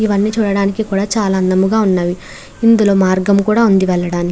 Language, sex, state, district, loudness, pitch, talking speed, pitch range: Telugu, female, Andhra Pradesh, Krishna, -14 LUFS, 200 Hz, 155 wpm, 185-215 Hz